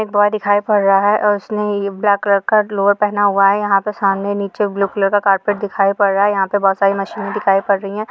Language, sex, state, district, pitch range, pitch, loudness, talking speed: Hindi, female, Chhattisgarh, Kabirdham, 195-205 Hz, 200 Hz, -15 LUFS, 275 wpm